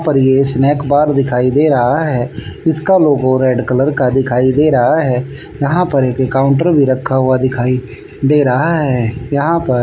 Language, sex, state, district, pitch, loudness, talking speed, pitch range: Hindi, male, Haryana, Rohtak, 135 Hz, -13 LUFS, 185 wpm, 125-145 Hz